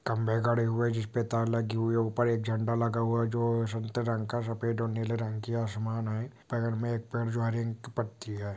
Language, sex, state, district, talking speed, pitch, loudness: Hindi, male, West Bengal, Jalpaiguri, 225 wpm, 115 Hz, -31 LUFS